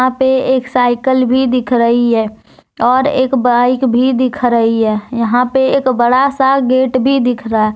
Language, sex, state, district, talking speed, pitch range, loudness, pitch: Hindi, female, Jharkhand, Deoghar, 195 wpm, 240-260 Hz, -13 LUFS, 255 Hz